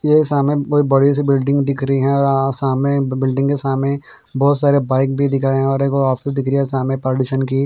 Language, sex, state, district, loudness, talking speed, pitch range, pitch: Hindi, male, Bihar, Katihar, -16 LUFS, 220 wpm, 135-140 Hz, 135 Hz